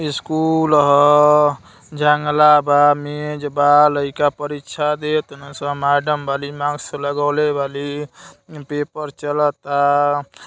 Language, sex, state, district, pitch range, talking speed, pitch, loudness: Hindi, male, Uttar Pradesh, Deoria, 145-150 Hz, 90 wpm, 145 Hz, -17 LUFS